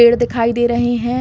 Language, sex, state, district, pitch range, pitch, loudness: Hindi, female, Uttar Pradesh, Varanasi, 235-240 Hz, 240 Hz, -16 LUFS